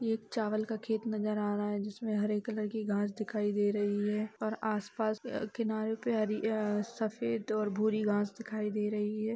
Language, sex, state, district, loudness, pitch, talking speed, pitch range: Hindi, female, Bihar, Darbhanga, -34 LUFS, 215 Hz, 200 wpm, 210-220 Hz